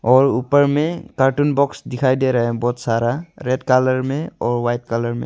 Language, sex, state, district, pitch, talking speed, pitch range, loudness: Hindi, male, Arunachal Pradesh, Longding, 130 Hz, 205 wpm, 120-140 Hz, -18 LUFS